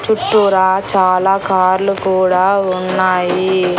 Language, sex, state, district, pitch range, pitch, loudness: Telugu, female, Andhra Pradesh, Annamaya, 185-195 Hz, 185 Hz, -13 LUFS